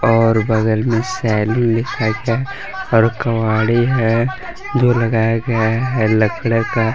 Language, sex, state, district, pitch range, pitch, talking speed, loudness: Hindi, male, Jharkhand, Palamu, 110-120 Hz, 115 Hz, 130 wpm, -16 LUFS